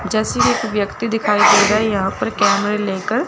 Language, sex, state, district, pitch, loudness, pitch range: Hindi, female, Chandigarh, Chandigarh, 210 Hz, -16 LUFS, 205-215 Hz